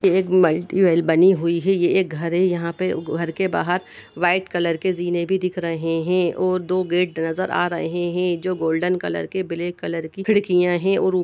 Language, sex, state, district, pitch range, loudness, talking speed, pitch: Hindi, female, Bihar, Jamui, 170-185 Hz, -21 LUFS, 210 wpm, 180 Hz